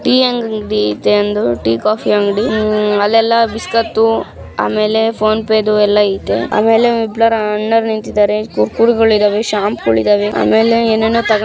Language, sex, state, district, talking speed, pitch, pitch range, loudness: Kannada, female, Karnataka, Mysore, 140 wpm, 215 Hz, 205-225 Hz, -13 LUFS